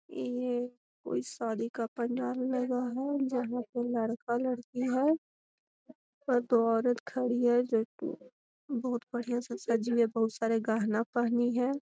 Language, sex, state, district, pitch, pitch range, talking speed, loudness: Magahi, female, Bihar, Gaya, 240 Hz, 230-250 Hz, 150 wpm, -32 LUFS